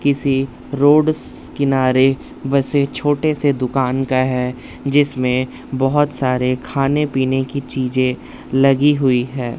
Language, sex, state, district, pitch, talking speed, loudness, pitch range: Hindi, male, Bihar, West Champaran, 135 Hz, 125 wpm, -17 LUFS, 130-140 Hz